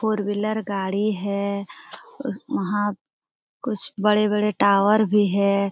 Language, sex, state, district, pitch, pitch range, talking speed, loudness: Hindi, female, Jharkhand, Jamtara, 205 Hz, 200-210 Hz, 105 wpm, -22 LUFS